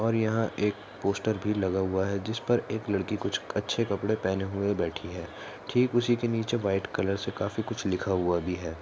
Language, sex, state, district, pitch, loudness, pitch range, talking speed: Hindi, male, Maharashtra, Solapur, 100 Hz, -29 LUFS, 95-110 Hz, 220 wpm